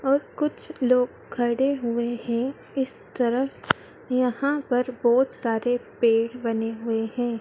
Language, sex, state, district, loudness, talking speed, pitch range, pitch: Hindi, female, Madhya Pradesh, Dhar, -25 LUFS, 130 wpm, 235-270 Hz, 245 Hz